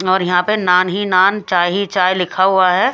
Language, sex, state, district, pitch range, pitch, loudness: Hindi, female, Haryana, Jhajjar, 180-200 Hz, 185 Hz, -14 LUFS